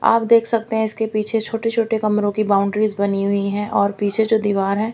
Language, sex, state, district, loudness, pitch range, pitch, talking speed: Hindi, female, Chandigarh, Chandigarh, -18 LUFS, 200-225 Hz, 215 Hz, 230 wpm